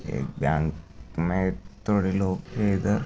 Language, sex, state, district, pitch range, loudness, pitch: Hindi, male, Maharashtra, Sindhudurg, 80-100 Hz, -27 LUFS, 95 Hz